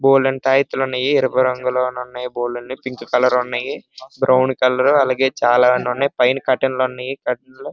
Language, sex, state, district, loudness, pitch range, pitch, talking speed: Telugu, male, Andhra Pradesh, Srikakulam, -18 LUFS, 125-135 Hz, 130 Hz, 95 wpm